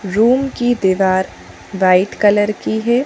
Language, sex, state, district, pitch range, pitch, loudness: Hindi, female, Madhya Pradesh, Bhopal, 190-240 Hz, 205 Hz, -15 LUFS